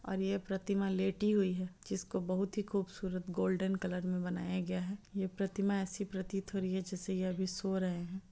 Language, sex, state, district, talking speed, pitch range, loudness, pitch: Hindi, female, Chhattisgarh, Bilaspur, 210 wpm, 185-195 Hz, -37 LUFS, 190 Hz